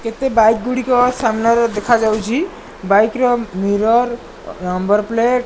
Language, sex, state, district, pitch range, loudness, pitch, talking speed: Odia, male, Odisha, Malkangiri, 215-245 Hz, -16 LUFS, 230 Hz, 120 wpm